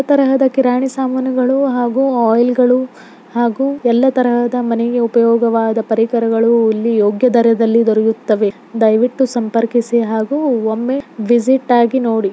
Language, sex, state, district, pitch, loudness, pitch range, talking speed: Kannada, female, Karnataka, Belgaum, 235 Hz, -14 LUFS, 230-255 Hz, 125 wpm